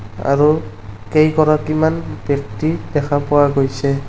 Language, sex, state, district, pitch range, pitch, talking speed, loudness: Assamese, male, Assam, Kamrup Metropolitan, 130-155 Hz, 145 Hz, 90 wpm, -16 LUFS